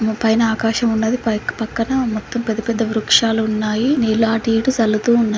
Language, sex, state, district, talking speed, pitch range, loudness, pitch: Telugu, female, Andhra Pradesh, Guntur, 135 wpm, 220-230 Hz, -17 LUFS, 225 Hz